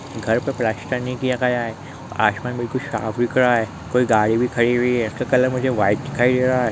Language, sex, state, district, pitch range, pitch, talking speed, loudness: Hindi, male, Chhattisgarh, Kabirdham, 115-125 Hz, 120 Hz, 240 wpm, -20 LUFS